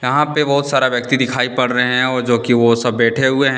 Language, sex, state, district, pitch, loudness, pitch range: Hindi, male, Jharkhand, Deoghar, 125 Hz, -15 LUFS, 120-135 Hz